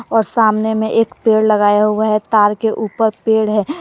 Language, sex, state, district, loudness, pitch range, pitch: Hindi, female, Jharkhand, Garhwa, -14 LUFS, 215-225 Hz, 220 Hz